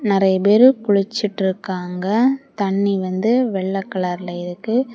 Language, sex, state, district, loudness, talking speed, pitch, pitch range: Tamil, female, Tamil Nadu, Kanyakumari, -18 LUFS, 110 wpm, 200 Hz, 190-230 Hz